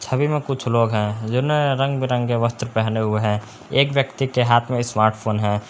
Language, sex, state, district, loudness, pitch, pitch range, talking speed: Hindi, male, Jharkhand, Palamu, -20 LUFS, 120 Hz, 110-135 Hz, 200 wpm